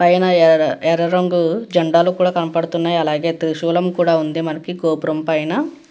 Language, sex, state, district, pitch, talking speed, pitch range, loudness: Telugu, female, Andhra Pradesh, Guntur, 170 Hz, 140 wpm, 160-175 Hz, -17 LUFS